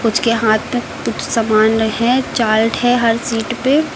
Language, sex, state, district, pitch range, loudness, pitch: Hindi, female, Uttar Pradesh, Lucknow, 220-245 Hz, -15 LUFS, 230 Hz